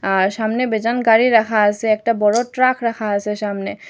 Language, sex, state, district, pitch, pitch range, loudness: Bengali, female, Assam, Hailakandi, 220 Hz, 210-235 Hz, -17 LUFS